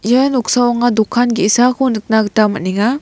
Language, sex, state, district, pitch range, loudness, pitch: Garo, female, Meghalaya, West Garo Hills, 215-250 Hz, -14 LUFS, 235 Hz